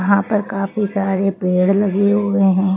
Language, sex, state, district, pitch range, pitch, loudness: Hindi, female, Madhya Pradesh, Bhopal, 190-200 Hz, 195 Hz, -17 LUFS